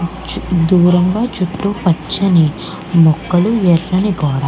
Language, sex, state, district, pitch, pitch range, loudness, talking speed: Telugu, female, Andhra Pradesh, Srikakulam, 180 Hz, 165-195 Hz, -14 LUFS, 95 wpm